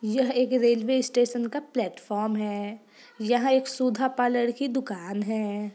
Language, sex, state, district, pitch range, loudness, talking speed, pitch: Hindi, female, Bihar, Gopalganj, 210-260 Hz, -26 LUFS, 145 wpm, 240 Hz